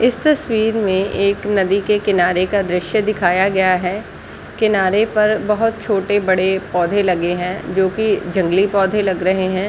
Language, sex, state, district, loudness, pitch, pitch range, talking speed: Hindi, female, Chhattisgarh, Balrampur, -17 LUFS, 195 Hz, 185-210 Hz, 155 wpm